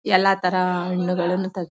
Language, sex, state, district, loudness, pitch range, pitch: Kannada, female, Karnataka, Mysore, -21 LUFS, 180-185 Hz, 180 Hz